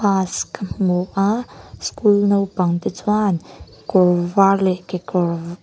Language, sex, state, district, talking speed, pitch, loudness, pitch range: Mizo, female, Mizoram, Aizawl, 130 wpm, 190 Hz, -19 LUFS, 180-200 Hz